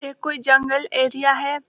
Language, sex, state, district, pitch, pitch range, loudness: Hindi, female, Chhattisgarh, Balrampur, 275 Hz, 270-280 Hz, -19 LUFS